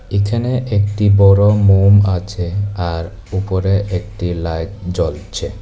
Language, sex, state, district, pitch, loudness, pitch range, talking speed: Bengali, male, Tripura, West Tripura, 100 Hz, -16 LUFS, 90-100 Hz, 105 wpm